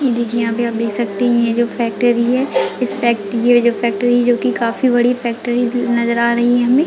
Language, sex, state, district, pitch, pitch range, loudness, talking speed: Hindi, female, Chhattisgarh, Raigarh, 235 Hz, 235-245 Hz, -16 LUFS, 225 wpm